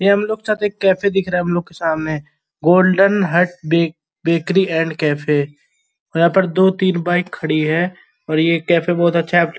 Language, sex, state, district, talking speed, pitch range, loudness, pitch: Hindi, male, Uttar Pradesh, Gorakhpur, 205 wpm, 160-185 Hz, -17 LUFS, 175 Hz